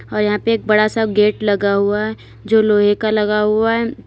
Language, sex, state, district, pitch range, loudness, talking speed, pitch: Hindi, female, Uttar Pradesh, Lalitpur, 210-220 Hz, -16 LUFS, 220 wpm, 215 Hz